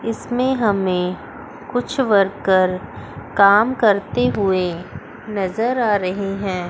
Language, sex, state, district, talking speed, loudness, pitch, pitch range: Hindi, female, Chandigarh, Chandigarh, 100 wpm, -19 LUFS, 200 Hz, 185-230 Hz